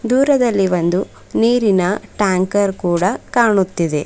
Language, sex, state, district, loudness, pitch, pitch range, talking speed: Kannada, female, Karnataka, Bidar, -16 LUFS, 195 Hz, 180-230 Hz, 90 wpm